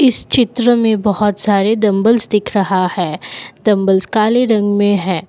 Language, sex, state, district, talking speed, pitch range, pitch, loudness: Hindi, female, Assam, Kamrup Metropolitan, 160 wpm, 195-225 Hz, 210 Hz, -14 LUFS